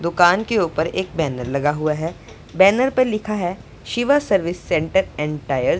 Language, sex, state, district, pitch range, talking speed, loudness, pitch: Hindi, female, Punjab, Pathankot, 155-210 Hz, 185 wpm, -20 LUFS, 175 Hz